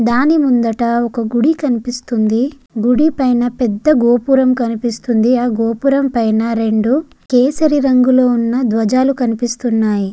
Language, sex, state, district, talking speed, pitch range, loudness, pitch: Telugu, female, Andhra Pradesh, Guntur, 115 wpm, 230-260 Hz, -14 LUFS, 245 Hz